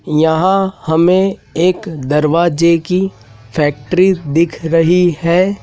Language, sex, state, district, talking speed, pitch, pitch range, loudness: Hindi, male, Madhya Pradesh, Dhar, 95 wpm, 170 Hz, 160-185 Hz, -13 LUFS